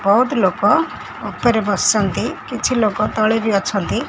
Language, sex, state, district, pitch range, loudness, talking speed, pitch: Odia, female, Odisha, Khordha, 205-240 Hz, -17 LUFS, 130 wpm, 215 Hz